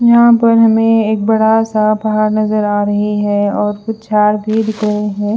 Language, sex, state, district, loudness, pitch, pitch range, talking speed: Hindi, female, Punjab, Fazilka, -13 LUFS, 215 Hz, 210-220 Hz, 200 wpm